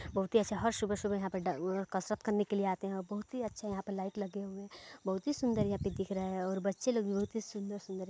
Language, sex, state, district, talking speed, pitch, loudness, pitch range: Hindi, female, Chhattisgarh, Balrampur, 295 wpm, 200 Hz, -36 LUFS, 190-210 Hz